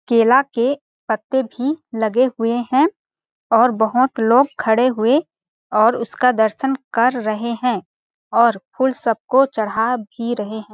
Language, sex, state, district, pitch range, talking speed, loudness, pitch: Hindi, female, Chhattisgarh, Balrampur, 220-260 Hz, 140 wpm, -18 LUFS, 235 Hz